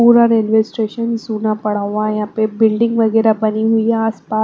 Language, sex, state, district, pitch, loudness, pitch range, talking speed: Hindi, female, Maharashtra, Mumbai Suburban, 220 Hz, -15 LUFS, 215-225 Hz, 205 wpm